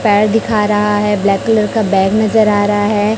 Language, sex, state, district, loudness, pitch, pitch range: Hindi, male, Chhattisgarh, Raipur, -13 LUFS, 210 Hz, 205-215 Hz